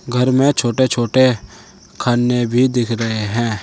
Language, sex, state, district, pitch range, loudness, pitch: Hindi, male, Uttar Pradesh, Saharanpur, 115-130 Hz, -16 LUFS, 120 Hz